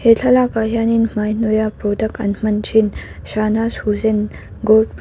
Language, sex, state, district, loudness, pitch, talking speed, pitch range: Mizo, female, Mizoram, Aizawl, -17 LUFS, 220 Hz, 155 wpm, 210-225 Hz